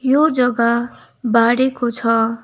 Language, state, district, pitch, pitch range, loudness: Nepali, West Bengal, Darjeeling, 235 Hz, 230-260 Hz, -16 LUFS